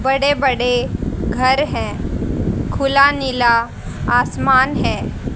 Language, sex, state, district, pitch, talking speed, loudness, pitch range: Hindi, female, Haryana, Rohtak, 265 Hz, 90 wpm, -17 LUFS, 245-275 Hz